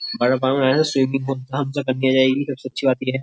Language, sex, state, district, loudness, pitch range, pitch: Hindi, male, Uttar Pradesh, Jyotiba Phule Nagar, -20 LUFS, 130-135 Hz, 130 Hz